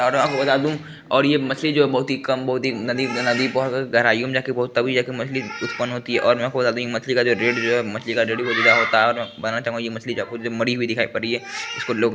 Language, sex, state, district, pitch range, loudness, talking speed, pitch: Hindi, male, Bihar, Begusarai, 115-130 Hz, -21 LUFS, 230 wpm, 120 Hz